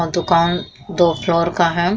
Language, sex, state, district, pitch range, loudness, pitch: Hindi, female, Uttar Pradesh, Muzaffarnagar, 170-175 Hz, -17 LUFS, 170 Hz